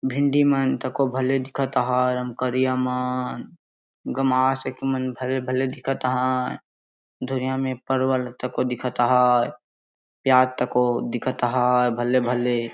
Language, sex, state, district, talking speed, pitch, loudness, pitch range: Sadri, male, Chhattisgarh, Jashpur, 120 wpm, 130 Hz, -23 LUFS, 125-130 Hz